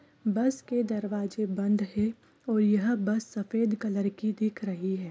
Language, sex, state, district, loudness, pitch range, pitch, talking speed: Hindi, female, Bihar, East Champaran, -29 LUFS, 205-225 Hz, 215 Hz, 175 wpm